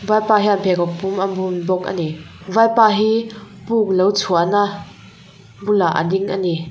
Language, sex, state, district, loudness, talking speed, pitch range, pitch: Mizo, female, Mizoram, Aizawl, -17 LUFS, 180 wpm, 180-210 Hz, 195 Hz